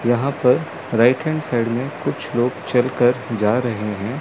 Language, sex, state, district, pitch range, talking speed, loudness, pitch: Hindi, male, Chandigarh, Chandigarh, 120-130 Hz, 185 wpm, -20 LUFS, 120 Hz